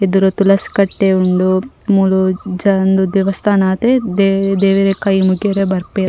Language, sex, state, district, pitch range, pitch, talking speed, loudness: Tulu, female, Karnataka, Dakshina Kannada, 190-195 Hz, 195 Hz, 130 wpm, -14 LUFS